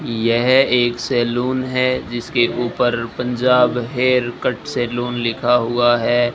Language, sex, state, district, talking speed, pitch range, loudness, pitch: Hindi, male, Rajasthan, Bikaner, 125 wpm, 120-125 Hz, -18 LUFS, 120 Hz